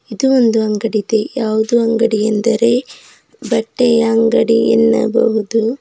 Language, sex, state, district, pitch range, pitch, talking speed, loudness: Kannada, female, Karnataka, Bidar, 215-235 Hz, 225 Hz, 105 wpm, -14 LUFS